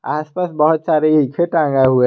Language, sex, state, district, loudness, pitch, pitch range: Hindi, male, Jharkhand, Garhwa, -16 LUFS, 155 Hz, 150-165 Hz